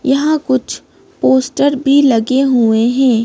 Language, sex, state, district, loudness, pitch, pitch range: Hindi, female, Madhya Pradesh, Bhopal, -13 LUFS, 265 Hz, 245-280 Hz